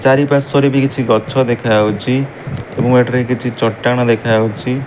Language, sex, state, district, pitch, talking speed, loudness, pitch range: Odia, male, Odisha, Malkangiri, 125 Hz, 170 wpm, -14 LUFS, 115-135 Hz